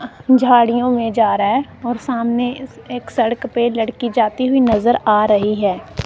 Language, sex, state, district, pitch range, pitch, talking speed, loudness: Hindi, female, Punjab, Kapurthala, 220-250 Hz, 235 Hz, 160 wpm, -16 LUFS